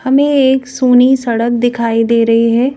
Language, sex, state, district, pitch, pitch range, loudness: Hindi, female, Madhya Pradesh, Bhopal, 245 Hz, 230-265 Hz, -11 LUFS